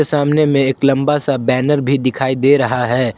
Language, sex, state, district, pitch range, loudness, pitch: Hindi, male, Jharkhand, Ranchi, 130-145 Hz, -15 LUFS, 135 Hz